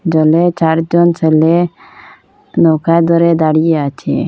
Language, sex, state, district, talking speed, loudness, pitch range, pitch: Bengali, female, Assam, Hailakandi, 100 wpm, -12 LUFS, 160-170 Hz, 165 Hz